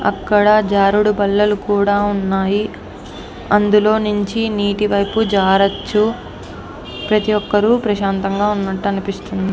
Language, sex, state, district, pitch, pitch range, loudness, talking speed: Telugu, female, Andhra Pradesh, Anantapur, 205 Hz, 200-210 Hz, -16 LUFS, 100 wpm